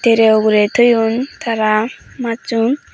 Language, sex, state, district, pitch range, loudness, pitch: Chakma, female, Tripura, Dhalai, 220-240 Hz, -15 LUFS, 230 Hz